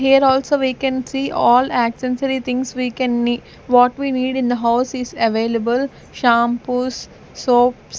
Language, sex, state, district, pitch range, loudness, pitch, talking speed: English, female, Maharashtra, Gondia, 245-265 Hz, -18 LUFS, 250 Hz, 160 wpm